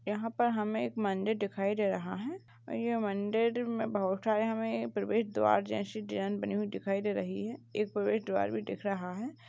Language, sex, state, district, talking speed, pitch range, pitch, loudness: Hindi, female, Uttar Pradesh, Jalaun, 200 wpm, 195-220 Hz, 205 Hz, -33 LUFS